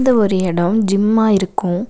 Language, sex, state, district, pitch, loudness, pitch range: Tamil, female, Tamil Nadu, Nilgiris, 200 Hz, -15 LUFS, 185-220 Hz